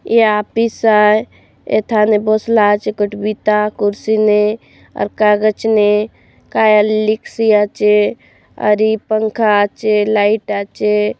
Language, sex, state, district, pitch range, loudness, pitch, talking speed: Halbi, female, Chhattisgarh, Bastar, 210-220 Hz, -14 LUFS, 215 Hz, 95 wpm